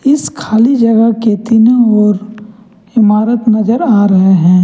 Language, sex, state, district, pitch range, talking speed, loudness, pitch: Hindi, male, Jharkhand, Ranchi, 210-230 Hz, 140 wpm, -10 LUFS, 220 Hz